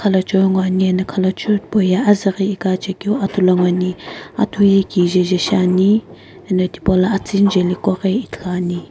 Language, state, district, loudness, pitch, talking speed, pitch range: Sumi, Nagaland, Kohima, -16 LUFS, 190 Hz, 130 wpm, 185-200 Hz